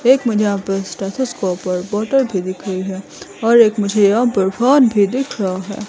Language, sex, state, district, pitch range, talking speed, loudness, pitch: Hindi, female, Himachal Pradesh, Shimla, 190-235 Hz, 215 wpm, -16 LUFS, 205 Hz